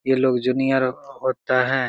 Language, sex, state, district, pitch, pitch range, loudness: Maithili, male, Bihar, Begusarai, 130 Hz, 130-135 Hz, -21 LUFS